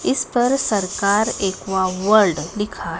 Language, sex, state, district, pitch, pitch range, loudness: Hindi, female, Madhya Pradesh, Dhar, 200 Hz, 185-215 Hz, -19 LUFS